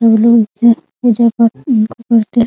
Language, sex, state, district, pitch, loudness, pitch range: Hindi, female, Bihar, Muzaffarpur, 230 Hz, -12 LUFS, 225-235 Hz